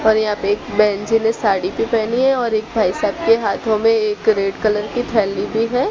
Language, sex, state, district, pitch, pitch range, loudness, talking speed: Hindi, female, Gujarat, Gandhinagar, 220 Hz, 210-225 Hz, -17 LUFS, 255 wpm